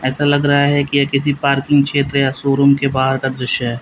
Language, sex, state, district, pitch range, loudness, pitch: Hindi, male, Uttar Pradesh, Lalitpur, 135-140 Hz, -15 LUFS, 140 Hz